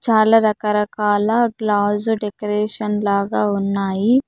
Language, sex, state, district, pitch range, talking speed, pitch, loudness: Telugu, female, Andhra Pradesh, Sri Satya Sai, 205-220 Hz, 85 wpm, 210 Hz, -18 LUFS